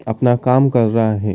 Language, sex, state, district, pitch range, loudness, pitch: Hindi, male, Uttar Pradesh, Muzaffarnagar, 110-125 Hz, -15 LUFS, 115 Hz